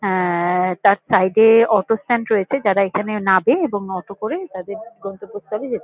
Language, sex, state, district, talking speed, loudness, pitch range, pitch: Bengali, female, West Bengal, North 24 Parganas, 165 wpm, -18 LUFS, 190-220 Hz, 205 Hz